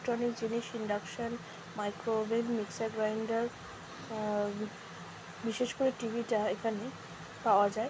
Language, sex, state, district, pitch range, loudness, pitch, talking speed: Bengali, female, West Bengal, Jhargram, 210-235 Hz, -35 LUFS, 225 Hz, 130 wpm